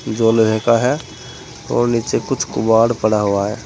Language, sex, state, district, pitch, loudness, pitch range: Hindi, male, Uttar Pradesh, Saharanpur, 110 Hz, -16 LUFS, 110-115 Hz